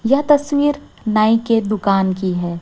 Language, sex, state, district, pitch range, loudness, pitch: Hindi, female, Chhattisgarh, Raipur, 195-280 Hz, -17 LUFS, 220 Hz